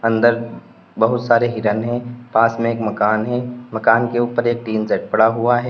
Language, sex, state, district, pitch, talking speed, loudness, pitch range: Hindi, male, Uttar Pradesh, Lalitpur, 115 Hz, 200 wpm, -18 LUFS, 110-120 Hz